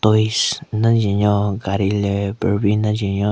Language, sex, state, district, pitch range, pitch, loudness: Rengma, male, Nagaland, Kohima, 100-110 Hz, 105 Hz, -18 LUFS